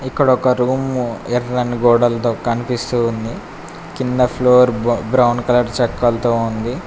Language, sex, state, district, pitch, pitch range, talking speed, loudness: Telugu, male, Telangana, Mahabubabad, 120 Hz, 120-125 Hz, 120 wpm, -16 LUFS